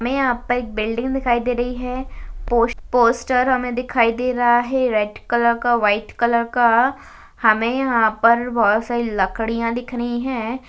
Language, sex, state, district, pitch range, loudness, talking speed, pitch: Hindi, female, Maharashtra, Aurangabad, 230-250 Hz, -19 LUFS, 175 wpm, 240 Hz